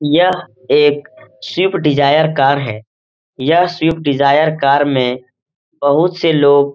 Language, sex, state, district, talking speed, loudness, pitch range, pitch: Hindi, male, Uttar Pradesh, Etah, 135 wpm, -14 LUFS, 135-165 Hz, 145 Hz